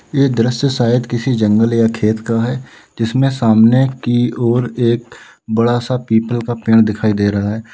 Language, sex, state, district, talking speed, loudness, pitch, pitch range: Hindi, male, Uttar Pradesh, Lalitpur, 180 wpm, -15 LUFS, 120 Hz, 110-125 Hz